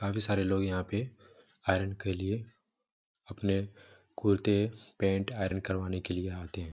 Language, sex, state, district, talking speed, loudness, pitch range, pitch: Hindi, male, Jharkhand, Jamtara, 150 wpm, -32 LUFS, 95-105 Hz, 95 Hz